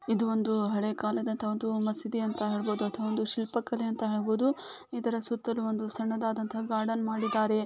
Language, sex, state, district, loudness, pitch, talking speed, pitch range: Kannada, female, Karnataka, Gulbarga, -31 LUFS, 220 Hz, 150 wpm, 215-230 Hz